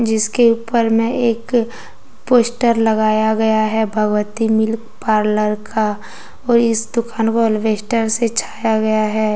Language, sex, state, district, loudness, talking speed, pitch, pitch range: Hindi, female, Jharkhand, Deoghar, -16 LUFS, 135 wpm, 220 Hz, 215-230 Hz